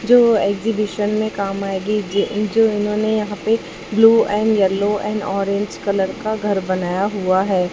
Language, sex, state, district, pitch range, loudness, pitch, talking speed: Hindi, male, Chhattisgarh, Raipur, 195-215 Hz, -18 LUFS, 205 Hz, 165 wpm